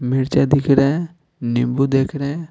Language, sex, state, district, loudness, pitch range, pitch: Hindi, male, Bihar, Patna, -18 LUFS, 130-150 Hz, 140 Hz